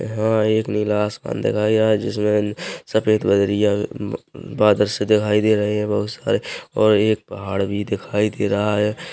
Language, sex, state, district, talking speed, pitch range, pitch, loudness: Hindi, male, Chhattisgarh, Korba, 180 wpm, 105-110 Hz, 105 Hz, -20 LUFS